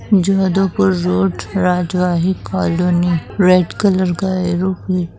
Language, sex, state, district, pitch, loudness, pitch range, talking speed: Hindi, female, Bihar, Gopalganj, 180 Hz, -16 LUFS, 165-185 Hz, 105 wpm